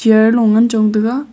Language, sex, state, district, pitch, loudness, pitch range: Wancho, female, Arunachal Pradesh, Longding, 225 Hz, -12 LUFS, 220-235 Hz